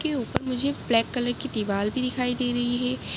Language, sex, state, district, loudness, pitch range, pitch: Hindi, female, Uttarakhand, Uttarkashi, -26 LUFS, 240-255 Hz, 250 Hz